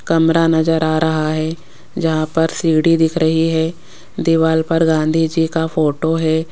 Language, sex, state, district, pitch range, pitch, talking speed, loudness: Hindi, female, Rajasthan, Jaipur, 160-165 Hz, 160 Hz, 165 wpm, -16 LUFS